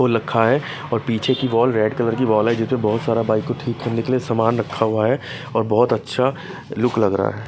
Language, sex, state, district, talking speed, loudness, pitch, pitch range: Hindi, male, Bihar, Patna, 250 wpm, -19 LUFS, 115 Hz, 115-125 Hz